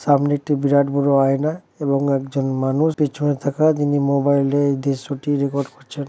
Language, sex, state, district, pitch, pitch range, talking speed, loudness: Bengali, male, West Bengal, Dakshin Dinajpur, 140 Hz, 140-145 Hz, 165 wpm, -19 LUFS